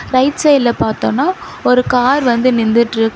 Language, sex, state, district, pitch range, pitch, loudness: Tamil, female, Tamil Nadu, Chennai, 235-270 Hz, 250 Hz, -13 LUFS